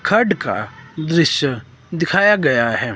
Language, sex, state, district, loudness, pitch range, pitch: Hindi, male, Himachal Pradesh, Shimla, -17 LUFS, 120-170 Hz, 145 Hz